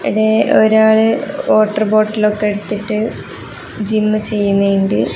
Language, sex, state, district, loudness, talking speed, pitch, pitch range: Malayalam, female, Kerala, Kasaragod, -14 LUFS, 80 wpm, 215 Hz, 205-215 Hz